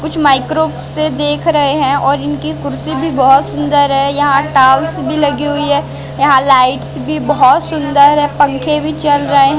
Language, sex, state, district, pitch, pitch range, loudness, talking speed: Hindi, female, Madhya Pradesh, Katni, 285 Hz, 265-295 Hz, -12 LUFS, 190 wpm